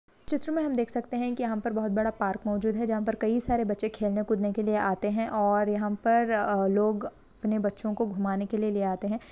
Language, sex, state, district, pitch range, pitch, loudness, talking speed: Hindi, female, Jharkhand, Jamtara, 205-230 Hz, 215 Hz, -28 LUFS, 245 wpm